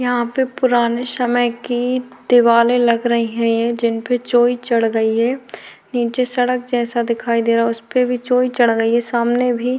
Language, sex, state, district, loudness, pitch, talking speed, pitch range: Hindi, female, Uttar Pradesh, Hamirpur, -17 LUFS, 240 Hz, 195 wpm, 235-245 Hz